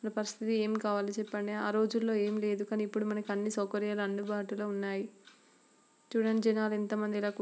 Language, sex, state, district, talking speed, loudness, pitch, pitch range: Telugu, female, Andhra Pradesh, Srikakulam, 120 wpm, -33 LUFS, 210 Hz, 205-215 Hz